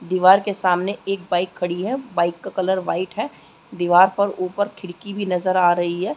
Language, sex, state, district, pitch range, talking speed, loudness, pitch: Hindi, female, Chhattisgarh, Balrampur, 180-195 Hz, 205 wpm, -20 LUFS, 185 Hz